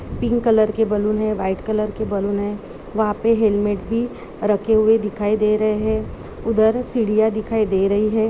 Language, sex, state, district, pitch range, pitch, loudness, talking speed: Hindi, female, Chhattisgarh, Balrampur, 210-220 Hz, 215 Hz, -19 LUFS, 190 wpm